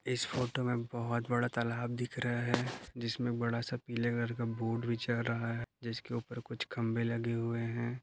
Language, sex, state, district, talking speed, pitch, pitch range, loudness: Hindi, male, Maharashtra, Dhule, 195 wpm, 120 Hz, 115-120 Hz, -36 LUFS